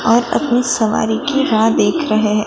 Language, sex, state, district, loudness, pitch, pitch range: Hindi, female, Gujarat, Gandhinagar, -15 LUFS, 225 Hz, 220-245 Hz